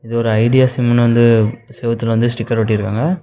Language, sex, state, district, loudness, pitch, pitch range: Tamil, male, Tamil Nadu, Namakkal, -15 LUFS, 115 Hz, 115-120 Hz